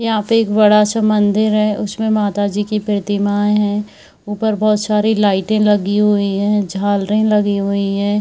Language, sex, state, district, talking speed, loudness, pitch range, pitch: Hindi, female, Jharkhand, Jamtara, 185 wpm, -15 LUFS, 205-215 Hz, 210 Hz